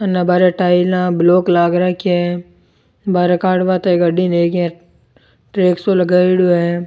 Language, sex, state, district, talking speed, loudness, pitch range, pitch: Rajasthani, male, Rajasthan, Churu, 120 wpm, -14 LUFS, 175-185 Hz, 180 Hz